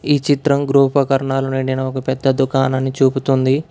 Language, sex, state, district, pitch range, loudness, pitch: Telugu, male, Karnataka, Bangalore, 130-140 Hz, -16 LUFS, 135 Hz